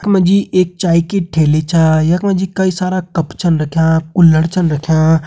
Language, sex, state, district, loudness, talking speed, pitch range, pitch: Hindi, male, Uttarakhand, Uttarkashi, -13 LUFS, 215 wpm, 160-185 Hz, 170 Hz